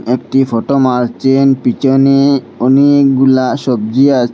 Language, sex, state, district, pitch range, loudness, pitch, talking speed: Bengali, male, Assam, Hailakandi, 125-135 Hz, -11 LUFS, 135 Hz, 110 wpm